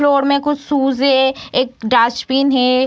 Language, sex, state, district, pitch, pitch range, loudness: Hindi, female, Bihar, Samastipur, 265 Hz, 255-280 Hz, -15 LUFS